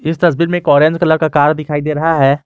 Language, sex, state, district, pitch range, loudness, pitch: Hindi, male, Jharkhand, Garhwa, 145-165 Hz, -13 LUFS, 155 Hz